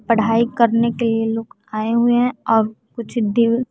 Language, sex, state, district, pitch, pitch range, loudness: Hindi, female, Bihar, West Champaran, 230 Hz, 225-235 Hz, -18 LUFS